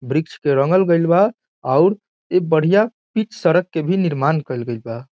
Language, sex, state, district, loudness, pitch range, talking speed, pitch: Bhojpuri, male, Bihar, Saran, -18 LUFS, 145-190 Hz, 195 wpm, 170 Hz